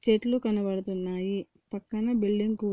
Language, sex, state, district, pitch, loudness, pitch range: Telugu, female, Andhra Pradesh, Anantapur, 205 Hz, -29 LUFS, 195-220 Hz